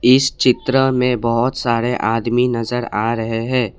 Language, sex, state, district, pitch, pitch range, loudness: Hindi, male, Assam, Kamrup Metropolitan, 120 Hz, 115-125 Hz, -17 LUFS